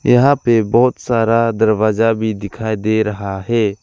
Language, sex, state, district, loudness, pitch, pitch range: Hindi, male, Arunachal Pradesh, Lower Dibang Valley, -15 LUFS, 110 Hz, 110-115 Hz